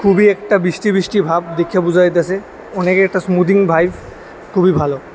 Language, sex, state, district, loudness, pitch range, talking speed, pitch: Bengali, male, Tripura, West Tripura, -14 LUFS, 175-195 Hz, 165 wpm, 185 Hz